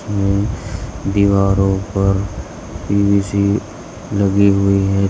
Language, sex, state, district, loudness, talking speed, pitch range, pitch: Hindi, male, Uttar Pradesh, Shamli, -16 LUFS, 80 wpm, 95-100 Hz, 100 Hz